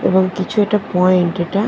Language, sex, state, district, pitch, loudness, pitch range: Bengali, female, West Bengal, Purulia, 185 Hz, -16 LUFS, 180-205 Hz